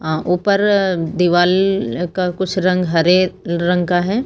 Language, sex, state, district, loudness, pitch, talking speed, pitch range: Hindi, female, Uttar Pradesh, Lucknow, -16 LUFS, 180 Hz, 155 wpm, 175-190 Hz